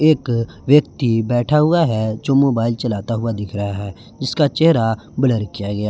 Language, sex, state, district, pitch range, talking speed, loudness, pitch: Hindi, male, Jharkhand, Garhwa, 110-140 Hz, 185 wpm, -18 LUFS, 115 Hz